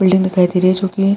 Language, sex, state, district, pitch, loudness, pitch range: Hindi, female, Bihar, Vaishali, 190 Hz, -14 LUFS, 185-195 Hz